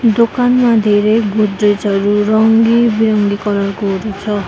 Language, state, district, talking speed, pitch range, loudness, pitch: Nepali, West Bengal, Darjeeling, 120 wpm, 205-225 Hz, -13 LUFS, 210 Hz